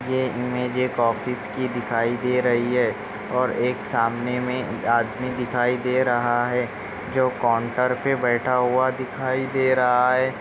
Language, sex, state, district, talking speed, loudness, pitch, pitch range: Hindi, male, Maharashtra, Nagpur, 160 wpm, -23 LUFS, 125 Hz, 120-130 Hz